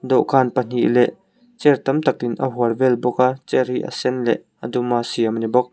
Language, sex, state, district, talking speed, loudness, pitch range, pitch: Mizo, male, Mizoram, Aizawl, 250 wpm, -19 LUFS, 120-130 Hz, 125 Hz